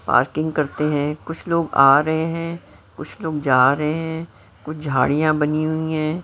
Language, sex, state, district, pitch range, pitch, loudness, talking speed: Hindi, female, Maharashtra, Mumbai Suburban, 150-160 Hz, 155 Hz, -20 LUFS, 175 wpm